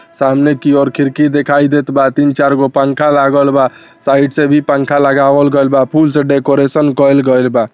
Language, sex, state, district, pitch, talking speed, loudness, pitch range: Bhojpuri, male, Bihar, Saran, 140 Hz, 195 wpm, -11 LUFS, 135-145 Hz